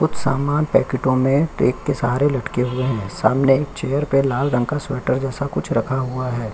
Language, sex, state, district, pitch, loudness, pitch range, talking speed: Hindi, male, Chhattisgarh, Kabirdham, 135 Hz, -20 LUFS, 130-140 Hz, 200 wpm